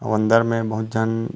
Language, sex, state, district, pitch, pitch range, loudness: Chhattisgarhi, male, Chhattisgarh, Rajnandgaon, 115 Hz, 110-115 Hz, -20 LUFS